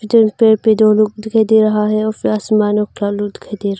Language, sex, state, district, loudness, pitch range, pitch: Hindi, female, Arunachal Pradesh, Longding, -14 LUFS, 210-220 Hz, 215 Hz